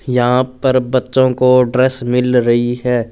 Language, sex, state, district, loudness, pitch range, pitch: Hindi, male, Punjab, Fazilka, -14 LUFS, 125-130 Hz, 125 Hz